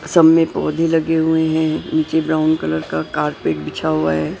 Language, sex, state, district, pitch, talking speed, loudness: Hindi, male, Maharashtra, Mumbai Suburban, 160 Hz, 190 wpm, -17 LUFS